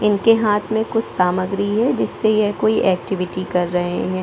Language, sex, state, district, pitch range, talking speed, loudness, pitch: Hindi, female, Jharkhand, Sahebganj, 185-220 Hz, 185 wpm, -19 LUFS, 205 Hz